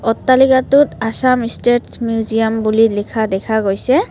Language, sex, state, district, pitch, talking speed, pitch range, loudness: Assamese, female, Assam, Kamrup Metropolitan, 225 Hz, 115 wpm, 220-255 Hz, -14 LUFS